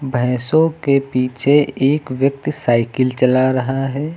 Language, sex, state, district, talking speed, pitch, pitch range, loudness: Hindi, female, Uttar Pradesh, Lucknow, 130 wpm, 135 Hz, 125-140 Hz, -17 LUFS